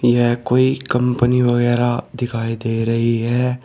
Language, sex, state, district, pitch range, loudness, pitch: Hindi, male, Uttar Pradesh, Shamli, 115-125 Hz, -18 LUFS, 120 Hz